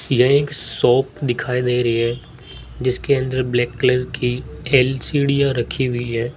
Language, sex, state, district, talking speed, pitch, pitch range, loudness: Hindi, male, Rajasthan, Jaipur, 160 wpm, 125 Hz, 120-135 Hz, -19 LUFS